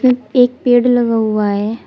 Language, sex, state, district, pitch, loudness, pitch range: Hindi, female, Uttar Pradesh, Shamli, 245 Hz, -14 LUFS, 220-250 Hz